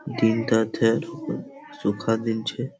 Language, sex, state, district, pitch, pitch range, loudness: Bengali, male, West Bengal, Malda, 115 Hz, 110-160 Hz, -25 LUFS